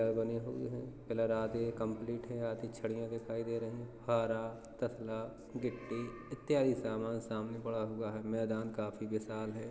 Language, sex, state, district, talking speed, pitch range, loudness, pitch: Hindi, male, Uttar Pradesh, Hamirpur, 165 wpm, 110-115 Hz, -39 LUFS, 115 Hz